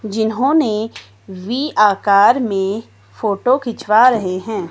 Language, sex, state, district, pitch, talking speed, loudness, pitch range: Hindi, female, Himachal Pradesh, Shimla, 215 Hz, 100 wpm, -16 LUFS, 195-235 Hz